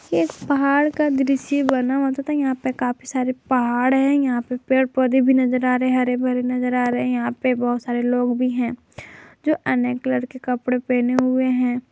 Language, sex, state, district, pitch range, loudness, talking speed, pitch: Hindi, female, Jharkhand, Palamu, 250-265 Hz, -20 LUFS, 215 wpm, 255 Hz